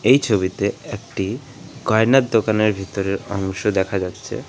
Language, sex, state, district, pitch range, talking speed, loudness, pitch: Bengali, male, West Bengal, Alipurduar, 95-120 Hz, 120 wpm, -20 LUFS, 105 Hz